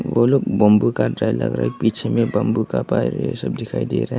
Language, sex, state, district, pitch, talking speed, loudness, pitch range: Hindi, male, Arunachal Pradesh, Longding, 105 Hz, 300 wpm, -19 LUFS, 105-115 Hz